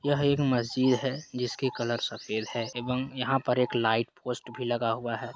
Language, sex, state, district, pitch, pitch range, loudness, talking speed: Hindi, male, Uttar Pradesh, Hamirpur, 125 Hz, 120-130 Hz, -29 LUFS, 200 wpm